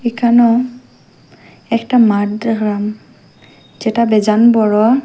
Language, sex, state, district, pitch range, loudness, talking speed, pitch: Bengali, female, Assam, Hailakandi, 215-235 Hz, -13 LUFS, 85 wpm, 230 Hz